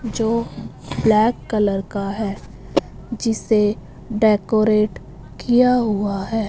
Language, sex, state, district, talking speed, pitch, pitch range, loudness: Hindi, male, Punjab, Fazilka, 90 wpm, 215 Hz, 210-230 Hz, -19 LUFS